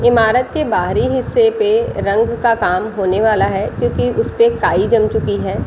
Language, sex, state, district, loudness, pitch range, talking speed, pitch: Hindi, female, Bihar, Jahanabad, -15 LUFS, 205-300 Hz, 200 wpm, 230 Hz